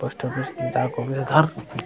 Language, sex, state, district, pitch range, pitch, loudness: Hindi, male, Bihar, Jamui, 130-135 Hz, 130 Hz, -24 LUFS